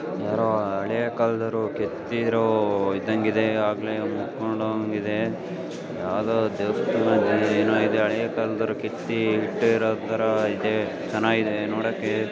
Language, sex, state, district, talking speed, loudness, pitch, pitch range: Kannada, male, Karnataka, Bijapur, 95 wpm, -24 LUFS, 110 Hz, 105-115 Hz